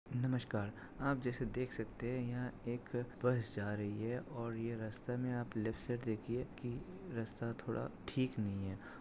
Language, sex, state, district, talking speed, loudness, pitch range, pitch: Hindi, male, Maharashtra, Sindhudurg, 160 wpm, -41 LUFS, 110-125 Hz, 120 Hz